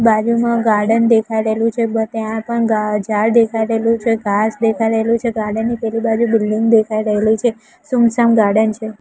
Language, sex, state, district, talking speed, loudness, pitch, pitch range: Gujarati, female, Gujarat, Gandhinagar, 155 wpm, -16 LUFS, 225 Hz, 220-230 Hz